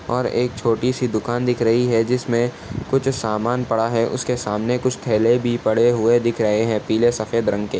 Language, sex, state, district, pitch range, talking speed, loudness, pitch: Hindi, male, Uttar Pradesh, Etah, 115-125 Hz, 205 wpm, -20 LUFS, 120 Hz